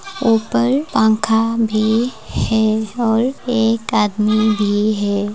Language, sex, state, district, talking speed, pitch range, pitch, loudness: Hindi, female, Rajasthan, Churu, 100 wpm, 215-235 Hz, 220 Hz, -17 LUFS